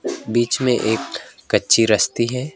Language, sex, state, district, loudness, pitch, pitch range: Hindi, male, West Bengal, Alipurduar, -18 LUFS, 120 Hz, 115-125 Hz